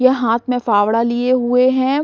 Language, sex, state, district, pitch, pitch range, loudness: Hindi, female, Uttar Pradesh, Gorakhpur, 250 Hz, 235-255 Hz, -16 LUFS